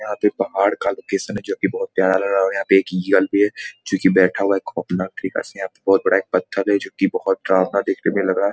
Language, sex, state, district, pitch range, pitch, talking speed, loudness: Hindi, male, Bihar, Muzaffarpur, 95-100 Hz, 95 Hz, 300 wpm, -19 LUFS